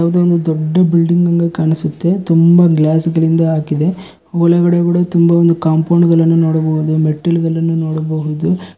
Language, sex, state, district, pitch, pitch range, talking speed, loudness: Kannada, male, Karnataka, Bellary, 165 Hz, 160-170 Hz, 130 wpm, -13 LUFS